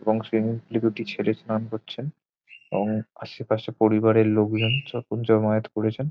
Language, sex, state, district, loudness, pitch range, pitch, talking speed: Bengali, male, West Bengal, Jhargram, -24 LUFS, 110-115 Hz, 110 Hz, 145 wpm